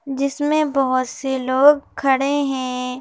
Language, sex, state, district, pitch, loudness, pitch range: Hindi, female, Madhya Pradesh, Bhopal, 270 Hz, -19 LUFS, 260-290 Hz